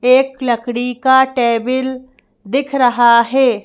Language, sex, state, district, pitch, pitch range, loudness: Hindi, female, Madhya Pradesh, Bhopal, 255 Hz, 240-260 Hz, -14 LUFS